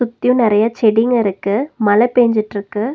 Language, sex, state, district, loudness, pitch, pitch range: Tamil, female, Tamil Nadu, Nilgiris, -15 LUFS, 225 Hz, 210-245 Hz